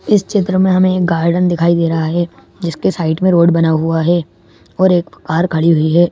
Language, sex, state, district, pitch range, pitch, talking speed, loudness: Hindi, male, Madhya Pradesh, Bhopal, 165-185 Hz, 170 Hz, 215 wpm, -14 LUFS